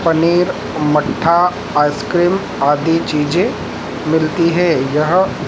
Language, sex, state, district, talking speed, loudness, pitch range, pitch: Hindi, male, Madhya Pradesh, Dhar, 90 wpm, -15 LUFS, 150-175 Hz, 160 Hz